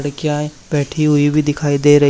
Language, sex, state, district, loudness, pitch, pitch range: Hindi, male, Haryana, Charkhi Dadri, -16 LUFS, 145 Hz, 145-150 Hz